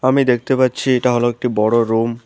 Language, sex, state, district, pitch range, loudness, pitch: Bengali, female, West Bengal, Alipurduar, 115-130 Hz, -16 LUFS, 125 Hz